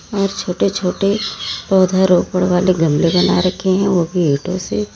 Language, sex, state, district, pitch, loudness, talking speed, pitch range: Hindi, female, Uttar Pradesh, Lalitpur, 185 Hz, -16 LUFS, 155 wpm, 175-190 Hz